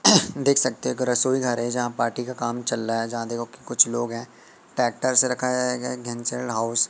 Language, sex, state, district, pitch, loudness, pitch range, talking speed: Hindi, male, Madhya Pradesh, Katni, 120 Hz, -23 LUFS, 120-125 Hz, 225 wpm